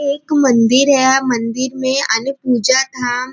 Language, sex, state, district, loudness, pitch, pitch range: Hindi, female, Maharashtra, Nagpur, -14 LUFS, 260 Hz, 245-275 Hz